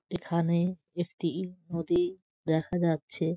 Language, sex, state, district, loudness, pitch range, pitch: Bengali, female, West Bengal, Jhargram, -31 LUFS, 165-180 Hz, 170 Hz